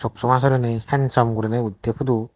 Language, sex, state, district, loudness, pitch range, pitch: Chakma, male, Tripura, Dhalai, -21 LUFS, 115-130 Hz, 120 Hz